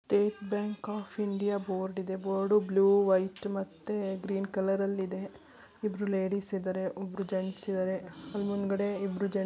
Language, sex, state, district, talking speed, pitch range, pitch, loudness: Kannada, female, Karnataka, Belgaum, 150 wpm, 190-200 Hz, 195 Hz, -32 LUFS